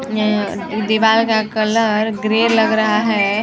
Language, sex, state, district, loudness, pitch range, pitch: Hindi, female, Chhattisgarh, Sarguja, -16 LUFS, 215-225 Hz, 215 Hz